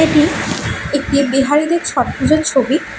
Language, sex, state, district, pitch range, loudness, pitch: Bengali, female, West Bengal, Alipurduar, 280-310 Hz, -15 LUFS, 295 Hz